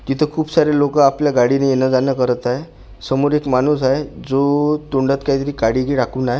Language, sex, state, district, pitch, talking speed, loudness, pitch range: Marathi, male, Maharashtra, Gondia, 135 Hz, 185 wpm, -17 LUFS, 130-145 Hz